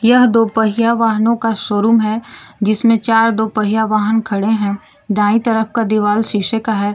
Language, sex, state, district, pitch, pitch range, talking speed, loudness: Hindi, female, Jharkhand, Garhwa, 220 Hz, 210-230 Hz, 180 wpm, -15 LUFS